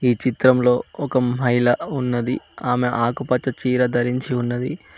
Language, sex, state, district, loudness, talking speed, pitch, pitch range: Telugu, male, Telangana, Mahabubabad, -20 LUFS, 120 wpm, 125 Hz, 120-130 Hz